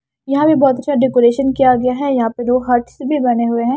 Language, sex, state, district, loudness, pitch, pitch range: Hindi, female, Maharashtra, Washim, -15 LUFS, 255 Hz, 245-275 Hz